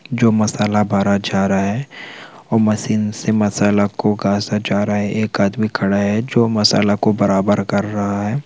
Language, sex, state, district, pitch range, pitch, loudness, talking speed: Hindi, male, Chhattisgarh, Sukma, 100-110 Hz, 105 Hz, -17 LUFS, 190 wpm